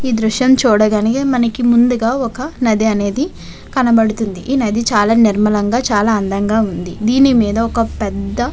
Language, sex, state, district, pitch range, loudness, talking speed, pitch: Telugu, female, Andhra Pradesh, Visakhapatnam, 210-245 Hz, -14 LUFS, 90 wpm, 225 Hz